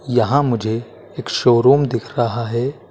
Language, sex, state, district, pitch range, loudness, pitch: Hindi, male, Madhya Pradesh, Dhar, 115-130 Hz, -17 LUFS, 120 Hz